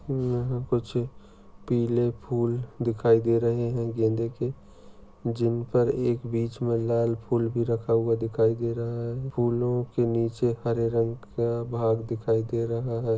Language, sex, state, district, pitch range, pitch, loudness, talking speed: Hindi, male, Maharashtra, Sindhudurg, 115-120 Hz, 115 Hz, -27 LUFS, 155 wpm